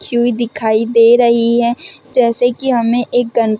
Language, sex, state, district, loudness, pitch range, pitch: Hindi, female, Chhattisgarh, Rajnandgaon, -13 LUFS, 230-245 Hz, 235 Hz